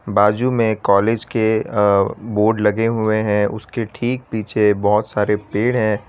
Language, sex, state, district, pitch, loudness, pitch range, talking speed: Hindi, male, Gujarat, Valsad, 110 Hz, -18 LUFS, 105-115 Hz, 155 wpm